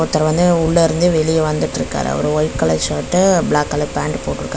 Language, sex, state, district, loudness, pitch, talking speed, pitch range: Tamil, female, Tamil Nadu, Chennai, -16 LUFS, 155 Hz, 185 wpm, 150-170 Hz